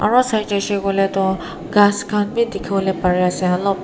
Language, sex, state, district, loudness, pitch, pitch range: Nagamese, female, Nagaland, Kohima, -18 LUFS, 200 Hz, 190-205 Hz